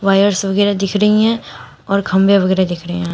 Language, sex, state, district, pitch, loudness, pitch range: Hindi, female, Uttar Pradesh, Shamli, 195 Hz, -15 LUFS, 185-205 Hz